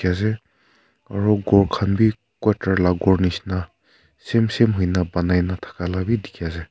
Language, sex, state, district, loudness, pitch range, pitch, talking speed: Nagamese, male, Nagaland, Kohima, -21 LUFS, 90-105 Hz, 95 Hz, 170 wpm